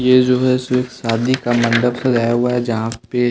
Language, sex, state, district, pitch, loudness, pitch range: Hindi, male, Bihar, West Champaran, 125 Hz, -17 LUFS, 115-125 Hz